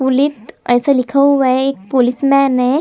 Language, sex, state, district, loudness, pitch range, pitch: Hindi, female, Chhattisgarh, Sukma, -14 LUFS, 250-275 Hz, 265 Hz